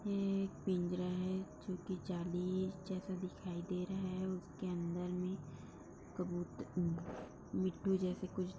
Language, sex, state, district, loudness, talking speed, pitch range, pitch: Hindi, female, Bihar, Darbhanga, -41 LUFS, 140 wpm, 180-185 Hz, 185 Hz